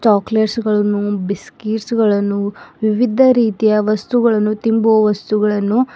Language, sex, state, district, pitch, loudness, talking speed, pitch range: Kannada, female, Karnataka, Bidar, 215 Hz, -16 LUFS, 100 wpm, 205-225 Hz